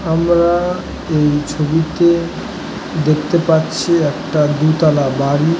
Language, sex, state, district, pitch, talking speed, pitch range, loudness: Bengali, male, West Bengal, Dakshin Dinajpur, 160 Hz, 95 wpm, 150-170 Hz, -15 LUFS